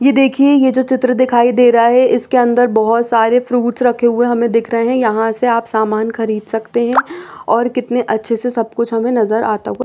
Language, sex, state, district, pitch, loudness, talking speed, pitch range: Hindi, female, Chandigarh, Chandigarh, 235 Hz, -14 LUFS, 225 wpm, 225-250 Hz